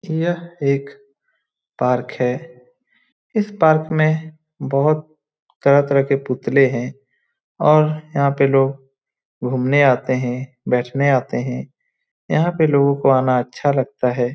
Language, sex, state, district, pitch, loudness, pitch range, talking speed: Hindi, male, Bihar, Lakhisarai, 140 Hz, -18 LUFS, 130-160 Hz, 125 wpm